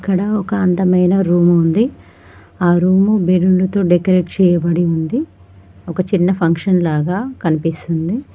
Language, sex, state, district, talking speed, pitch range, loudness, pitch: Telugu, female, Telangana, Mahabubabad, 115 wpm, 170-190 Hz, -15 LUFS, 180 Hz